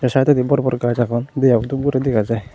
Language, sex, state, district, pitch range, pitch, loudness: Chakma, male, Tripura, Unakoti, 120-135 Hz, 125 Hz, -17 LUFS